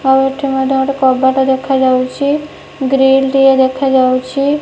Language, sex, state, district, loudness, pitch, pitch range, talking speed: Odia, female, Odisha, Nuapada, -12 LUFS, 265 Hz, 260-270 Hz, 115 wpm